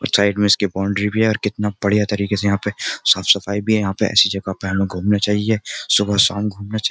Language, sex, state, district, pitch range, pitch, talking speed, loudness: Hindi, male, Uttar Pradesh, Jyotiba Phule Nagar, 100-105 Hz, 100 Hz, 260 wpm, -18 LUFS